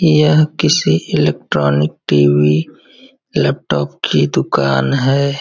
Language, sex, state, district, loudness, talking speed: Hindi, male, Uttar Pradesh, Varanasi, -14 LUFS, 90 wpm